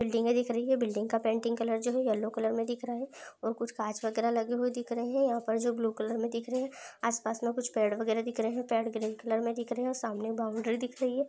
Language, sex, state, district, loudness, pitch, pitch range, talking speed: Hindi, female, Bihar, Madhepura, -32 LUFS, 230 Hz, 225-245 Hz, 315 wpm